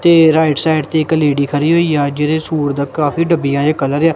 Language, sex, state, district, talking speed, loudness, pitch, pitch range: Punjabi, male, Punjab, Kapurthala, 245 wpm, -14 LUFS, 155 Hz, 145-160 Hz